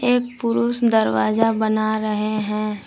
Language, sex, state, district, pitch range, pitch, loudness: Hindi, female, Jharkhand, Garhwa, 215-235 Hz, 220 Hz, -20 LUFS